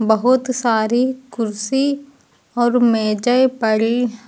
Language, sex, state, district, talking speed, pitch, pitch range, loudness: Hindi, female, Uttar Pradesh, Lucknow, 85 wpm, 240 Hz, 220-255 Hz, -17 LUFS